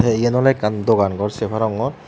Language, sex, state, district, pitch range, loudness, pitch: Chakma, male, Tripura, Dhalai, 105-120 Hz, -18 LUFS, 110 Hz